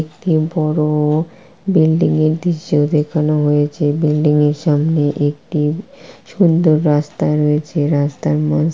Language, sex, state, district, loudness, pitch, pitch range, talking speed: Bengali, female, West Bengal, Purulia, -16 LUFS, 150 Hz, 150-155 Hz, 110 wpm